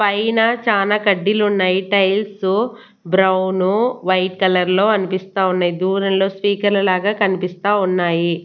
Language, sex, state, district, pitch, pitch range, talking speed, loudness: Telugu, female, Andhra Pradesh, Annamaya, 195 Hz, 185-205 Hz, 100 wpm, -17 LUFS